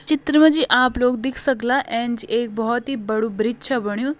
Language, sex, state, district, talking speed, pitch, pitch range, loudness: Hindi, female, Uttarakhand, Uttarkashi, 215 wpm, 245 Hz, 230-270 Hz, -19 LUFS